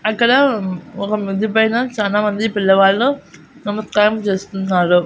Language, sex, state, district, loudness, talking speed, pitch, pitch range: Telugu, female, Andhra Pradesh, Annamaya, -16 LUFS, 85 wpm, 210 Hz, 195-225 Hz